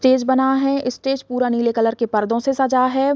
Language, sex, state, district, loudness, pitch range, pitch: Hindi, female, Bihar, East Champaran, -19 LUFS, 235-265 Hz, 260 Hz